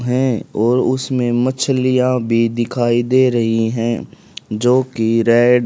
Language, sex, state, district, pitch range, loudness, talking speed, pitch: Hindi, male, Haryana, Charkhi Dadri, 115-130 Hz, -16 LUFS, 125 wpm, 120 Hz